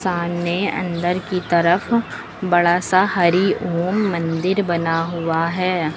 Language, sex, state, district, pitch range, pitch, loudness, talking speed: Hindi, female, Uttar Pradesh, Lucknow, 170-185 Hz, 175 Hz, -19 LUFS, 120 wpm